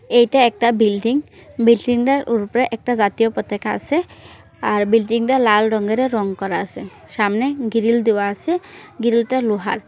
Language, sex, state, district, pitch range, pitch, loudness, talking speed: Bengali, female, West Bengal, Kolkata, 215-250 Hz, 230 Hz, -18 LUFS, 145 wpm